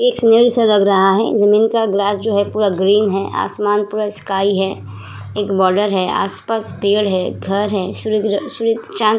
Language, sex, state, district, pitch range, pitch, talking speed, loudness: Hindi, female, Uttar Pradesh, Muzaffarnagar, 195-215 Hz, 205 Hz, 170 wpm, -16 LUFS